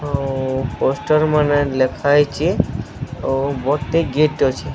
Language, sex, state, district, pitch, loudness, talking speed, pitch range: Odia, male, Odisha, Sambalpur, 140 Hz, -18 LUFS, 115 wpm, 130-145 Hz